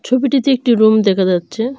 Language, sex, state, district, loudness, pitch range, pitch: Bengali, female, Tripura, Dhalai, -14 LUFS, 200-260 Hz, 230 Hz